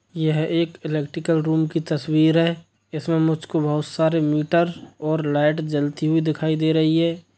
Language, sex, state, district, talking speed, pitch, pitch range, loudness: Hindi, male, Bihar, Sitamarhi, 160 wpm, 160 Hz, 155-165 Hz, -21 LUFS